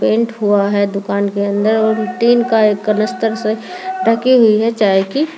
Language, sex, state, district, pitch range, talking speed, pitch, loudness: Hindi, female, Delhi, New Delhi, 200-235 Hz, 190 wpm, 220 Hz, -14 LUFS